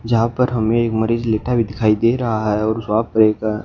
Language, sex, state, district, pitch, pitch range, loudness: Hindi, male, Haryana, Rohtak, 110 Hz, 110-115 Hz, -17 LUFS